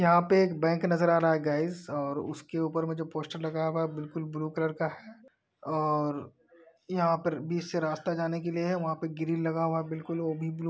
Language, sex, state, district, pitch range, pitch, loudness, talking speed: Hindi, male, Uttar Pradesh, Etah, 155-170 Hz, 165 Hz, -30 LUFS, 245 wpm